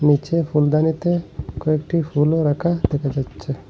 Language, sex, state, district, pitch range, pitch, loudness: Bengali, male, Assam, Hailakandi, 145-165 Hz, 150 Hz, -20 LUFS